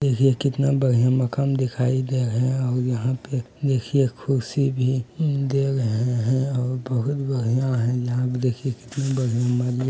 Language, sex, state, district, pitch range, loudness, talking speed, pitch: Hindi, male, Bihar, Muzaffarpur, 125-135 Hz, -23 LUFS, 105 wpm, 130 Hz